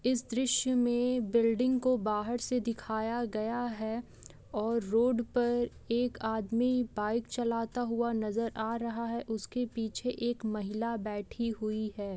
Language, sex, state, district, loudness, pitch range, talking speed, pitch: Hindi, female, West Bengal, Purulia, -32 LUFS, 220-245 Hz, 145 wpm, 230 Hz